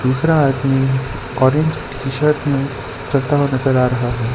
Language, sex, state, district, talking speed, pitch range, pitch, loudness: Hindi, male, Gujarat, Valsad, 150 wpm, 130-140 Hz, 135 Hz, -17 LUFS